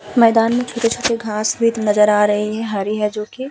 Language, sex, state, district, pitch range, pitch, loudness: Hindi, female, Uttar Pradesh, Hamirpur, 210-230 Hz, 220 Hz, -17 LUFS